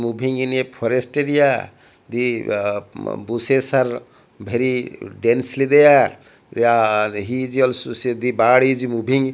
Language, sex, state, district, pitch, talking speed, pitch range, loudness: English, male, Odisha, Malkangiri, 125 Hz, 120 wpm, 115-130 Hz, -18 LUFS